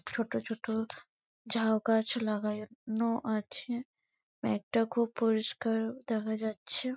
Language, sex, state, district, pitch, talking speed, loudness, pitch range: Bengali, female, West Bengal, Malda, 225 Hz, 95 wpm, -33 LUFS, 220-235 Hz